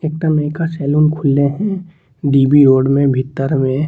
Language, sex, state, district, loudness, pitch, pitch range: Maithili, male, Bihar, Saharsa, -14 LUFS, 145 Hz, 135-155 Hz